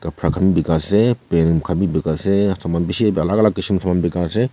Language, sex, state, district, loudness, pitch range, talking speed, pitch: Nagamese, male, Nagaland, Kohima, -18 LUFS, 85-100 Hz, 210 wpm, 90 Hz